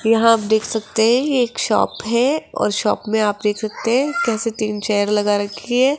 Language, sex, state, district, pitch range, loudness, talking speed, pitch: Hindi, female, Rajasthan, Jaipur, 210-240 Hz, -18 LUFS, 210 wpm, 220 Hz